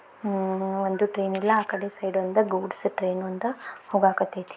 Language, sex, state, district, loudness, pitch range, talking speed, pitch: Kannada, female, Karnataka, Belgaum, -26 LUFS, 190-210 Hz, 145 wpm, 195 Hz